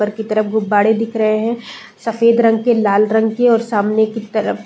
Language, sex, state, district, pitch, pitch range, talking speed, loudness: Hindi, female, Uttar Pradesh, Deoria, 220 Hz, 215-230 Hz, 230 wpm, -15 LUFS